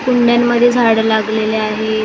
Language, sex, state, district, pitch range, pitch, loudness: Marathi, female, Maharashtra, Gondia, 220-240 Hz, 220 Hz, -13 LUFS